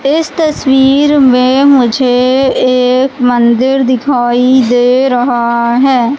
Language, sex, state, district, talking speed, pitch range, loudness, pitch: Hindi, female, Madhya Pradesh, Katni, 95 wpm, 245-270 Hz, -9 LUFS, 255 Hz